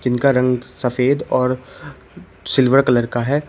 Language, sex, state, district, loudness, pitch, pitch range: Hindi, male, Uttar Pradesh, Shamli, -17 LUFS, 125 Hz, 125-135 Hz